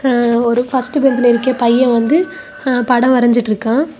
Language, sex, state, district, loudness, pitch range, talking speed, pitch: Tamil, female, Tamil Nadu, Kanyakumari, -14 LUFS, 240-270 Hz, 135 wpm, 250 Hz